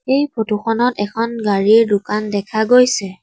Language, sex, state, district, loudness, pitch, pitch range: Assamese, female, Assam, Sonitpur, -16 LUFS, 220 Hz, 205-235 Hz